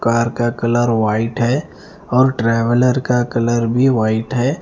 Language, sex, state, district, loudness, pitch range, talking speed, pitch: Hindi, male, Punjab, Fazilka, -16 LUFS, 115-125 Hz, 155 wpm, 120 Hz